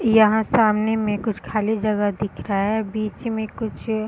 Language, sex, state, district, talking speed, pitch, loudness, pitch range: Hindi, female, Bihar, Purnia, 190 wpm, 215 Hz, -22 LUFS, 210-220 Hz